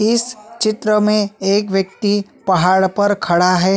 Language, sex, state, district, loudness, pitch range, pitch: Hindi, male, Chhattisgarh, Sukma, -16 LUFS, 190-215 Hz, 205 Hz